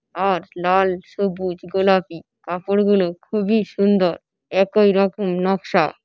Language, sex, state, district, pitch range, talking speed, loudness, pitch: Bengali, female, West Bengal, Paschim Medinipur, 180-200 Hz, 110 wpm, -19 LUFS, 190 Hz